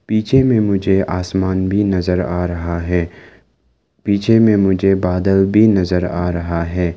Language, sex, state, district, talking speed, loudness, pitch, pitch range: Hindi, male, Arunachal Pradesh, Lower Dibang Valley, 155 wpm, -16 LUFS, 95 Hz, 90-100 Hz